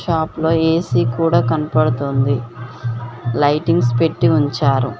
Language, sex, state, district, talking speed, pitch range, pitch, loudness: Telugu, female, Telangana, Mahabubabad, 85 wpm, 120-160 Hz, 135 Hz, -17 LUFS